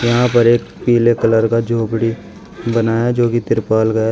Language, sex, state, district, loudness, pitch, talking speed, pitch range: Hindi, male, Uttar Pradesh, Shamli, -15 LUFS, 115 Hz, 190 wpm, 115-120 Hz